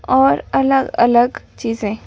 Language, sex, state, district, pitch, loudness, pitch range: Hindi, female, Delhi, New Delhi, 250 Hz, -16 LUFS, 230-270 Hz